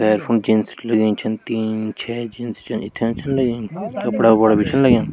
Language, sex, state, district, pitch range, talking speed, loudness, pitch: Garhwali, male, Uttarakhand, Tehri Garhwal, 110-115 Hz, 200 wpm, -19 LUFS, 110 Hz